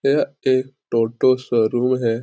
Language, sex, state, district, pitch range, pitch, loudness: Hindi, male, Bihar, Supaul, 115-130 Hz, 130 Hz, -19 LUFS